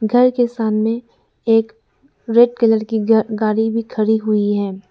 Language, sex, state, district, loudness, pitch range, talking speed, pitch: Hindi, female, Arunachal Pradesh, Lower Dibang Valley, -17 LUFS, 215-235 Hz, 160 wpm, 225 Hz